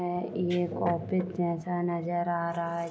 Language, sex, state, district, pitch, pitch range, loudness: Hindi, female, Jharkhand, Sahebganj, 175 Hz, 170-175 Hz, -30 LUFS